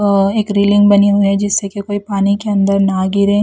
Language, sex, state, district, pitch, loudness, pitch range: Hindi, female, Chhattisgarh, Raipur, 200 Hz, -13 LUFS, 200-205 Hz